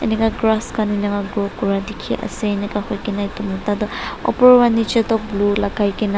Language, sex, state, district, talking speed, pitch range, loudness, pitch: Nagamese, female, Nagaland, Dimapur, 185 wpm, 205-220 Hz, -18 LUFS, 205 Hz